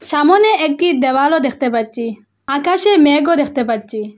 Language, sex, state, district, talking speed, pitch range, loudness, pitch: Bengali, female, Assam, Hailakandi, 130 wpm, 240-330 Hz, -14 LUFS, 285 Hz